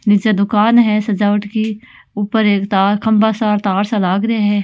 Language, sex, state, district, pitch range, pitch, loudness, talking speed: Marwari, female, Rajasthan, Nagaur, 205-220 Hz, 210 Hz, -15 LUFS, 170 wpm